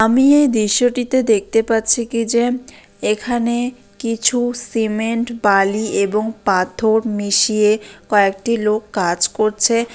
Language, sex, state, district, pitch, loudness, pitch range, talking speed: Bengali, female, West Bengal, Dakshin Dinajpur, 225 Hz, -17 LUFS, 210-240 Hz, 115 wpm